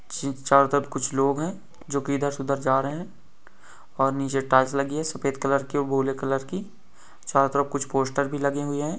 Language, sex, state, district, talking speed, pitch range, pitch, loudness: Hindi, male, Bihar, Gaya, 225 wpm, 135-145 Hz, 140 Hz, -25 LUFS